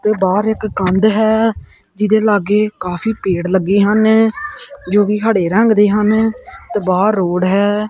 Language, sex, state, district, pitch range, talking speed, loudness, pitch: Punjabi, male, Punjab, Kapurthala, 195-220 Hz, 160 wpm, -14 LUFS, 210 Hz